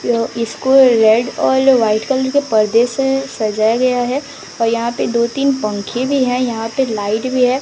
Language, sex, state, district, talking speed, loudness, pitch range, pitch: Hindi, female, Odisha, Sambalpur, 195 wpm, -15 LUFS, 225-265 Hz, 245 Hz